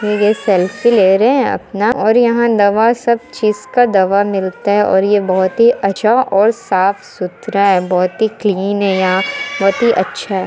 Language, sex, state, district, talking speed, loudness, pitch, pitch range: Hindi, female, Bihar, Muzaffarpur, 185 wpm, -13 LUFS, 205 Hz, 190-235 Hz